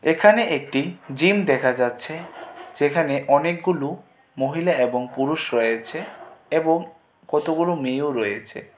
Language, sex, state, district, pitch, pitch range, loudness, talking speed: Bengali, male, Tripura, West Tripura, 155 Hz, 135-170 Hz, -22 LUFS, 105 wpm